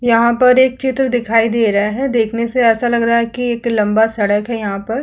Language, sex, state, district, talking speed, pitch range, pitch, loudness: Hindi, female, Chhattisgarh, Kabirdham, 265 wpm, 220-245 Hz, 235 Hz, -15 LUFS